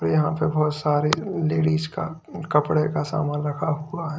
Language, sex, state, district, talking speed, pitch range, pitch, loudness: Hindi, male, Uttar Pradesh, Lalitpur, 155 wpm, 150-160 Hz, 155 Hz, -24 LUFS